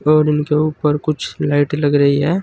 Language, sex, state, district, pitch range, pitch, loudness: Hindi, male, Uttar Pradesh, Saharanpur, 145-155 Hz, 150 Hz, -16 LUFS